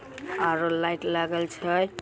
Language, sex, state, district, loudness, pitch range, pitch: Magahi, female, Bihar, Samastipur, -27 LUFS, 170-175 Hz, 170 Hz